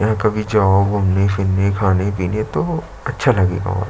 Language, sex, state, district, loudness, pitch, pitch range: Hindi, male, Chhattisgarh, Sukma, -17 LUFS, 100 Hz, 95-105 Hz